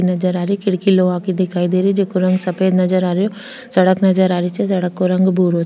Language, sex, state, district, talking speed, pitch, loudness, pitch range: Rajasthani, female, Rajasthan, Nagaur, 305 wpm, 185 Hz, -16 LUFS, 180-190 Hz